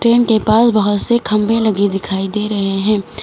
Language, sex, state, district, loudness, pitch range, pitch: Hindi, female, Uttar Pradesh, Lucknow, -14 LUFS, 200-225 Hz, 210 Hz